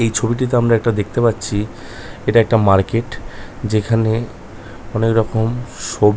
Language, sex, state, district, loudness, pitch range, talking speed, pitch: Bengali, male, West Bengal, North 24 Parganas, -17 LUFS, 105-120 Hz, 125 wpm, 115 Hz